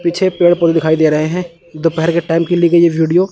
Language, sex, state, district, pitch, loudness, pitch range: Hindi, male, Chandigarh, Chandigarh, 170 Hz, -13 LUFS, 165-175 Hz